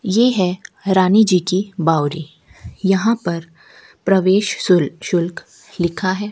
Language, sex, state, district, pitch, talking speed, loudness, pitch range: Hindi, female, Rajasthan, Bikaner, 185 Hz, 125 wpm, -17 LUFS, 170-200 Hz